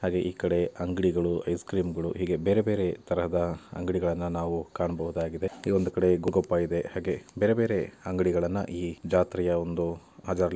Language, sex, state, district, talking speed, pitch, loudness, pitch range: Kannada, male, Karnataka, Dakshina Kannada, 140 wpm, 90 Hz, -28 LUFS, 85-95 Hz